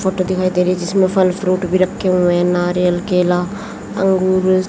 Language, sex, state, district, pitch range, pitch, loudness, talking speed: Hindi, female, Haryana, Jhajjar, 180-185 Hz, 185 Hz, -16 LUFS, 165 wpm